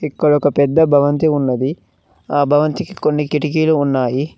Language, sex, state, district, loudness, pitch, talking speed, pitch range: Telugu, male, Telangana, Mahabubabad, -15 LUFS, 145 Hz, 135 wpm, 135-150 Hz